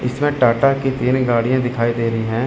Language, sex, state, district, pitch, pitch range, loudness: Hindi, male, Chandigarh, Chandigarh, 125 Hz, 115-130 Hz, -17 LUFS